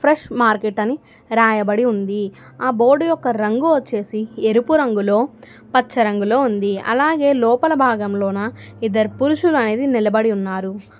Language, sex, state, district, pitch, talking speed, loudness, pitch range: Telugu, female, Telangana, Hyderabad, 230 Hz, 125 wpm, -18 LUFS, 215-265 Hz